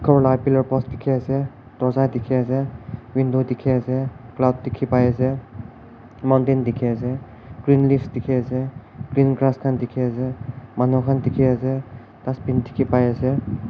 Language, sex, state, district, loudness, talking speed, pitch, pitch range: Nagamese, male, Nagaland, Kohima, -21 LUFS, 145 wpm, 130 Hz, 125-135 Hz